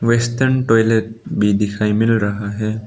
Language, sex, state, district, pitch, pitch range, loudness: Hindi, male, Arunachal Pradesh, Lower Dibang Valley, 110 Hz, 105-115 Hz, -17 LUFS